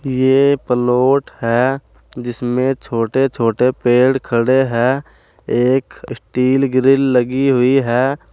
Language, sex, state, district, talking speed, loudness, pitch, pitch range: Hindi, male, Uttar Pradesh, Saharanpur, 100 wpm, -15 LUFS, 130 Hz, 125-135 Hz